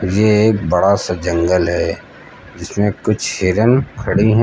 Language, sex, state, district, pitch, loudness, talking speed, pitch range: Hindi, male, Uttar Pradesh, Lucknow, 100 Hz, -16 LUFS, 150 wpm, 90-110 Hz